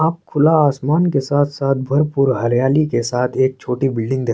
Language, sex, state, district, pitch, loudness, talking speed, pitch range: Hindi, male, Chhattisgarh, Sarguja, 135 Hz, -17 LUFS, 195 wpm, 125-150 Hz